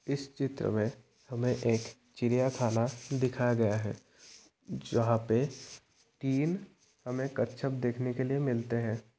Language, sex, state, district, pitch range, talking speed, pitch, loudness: Hindi, male, Bihar, Kishanganj, 115-135 Hz, 130 wpm, 125 Hz, -32 LUFS